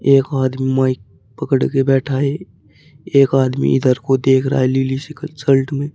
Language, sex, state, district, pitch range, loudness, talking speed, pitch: Hindi, male, Uttar Pradesh, Saharanpur, 130-140 Hz, -16 LUFS, 180 wpm, 135 Hz